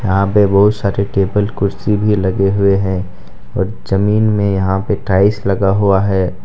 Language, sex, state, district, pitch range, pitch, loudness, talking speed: Hindi, male, Jharkhand, Deoghar, 95-105 Hz, 100 Hz, -14 LUFS, 175 wpm